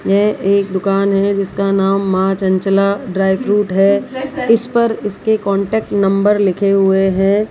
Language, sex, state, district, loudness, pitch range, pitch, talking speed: Hindi, female, Rajasthan, Jaipur, -15 LUFS, 195-210 Hz, 200 Hz, 150 wpm